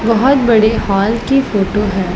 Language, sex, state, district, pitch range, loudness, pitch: Hindi, female, Punjab, Pathankot, 200-235 Hz, -13 LUFS, 220 Hz